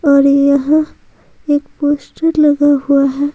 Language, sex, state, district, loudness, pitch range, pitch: Hindi, female, Bihar, Patna, -13 LUFS, 280-295 Hz, 290 Hz